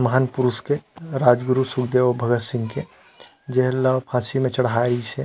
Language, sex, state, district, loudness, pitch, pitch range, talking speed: Chhattisgarhi, male, Chhattisgarh, Rajnandgaon, -21 LUFS, 125 Hz, 120-130 Hz, 185 wpm